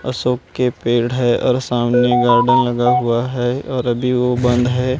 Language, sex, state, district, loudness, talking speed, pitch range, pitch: Hindi, male, Maharashtra, Gondia, -16 LUFS, 180 wpm, 120-125 Hz, 125 Hz